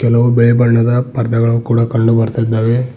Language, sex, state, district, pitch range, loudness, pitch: Kannada, male, Karnataka, Bidar, 115-120 Hz, -13 LUFS, 115 Hz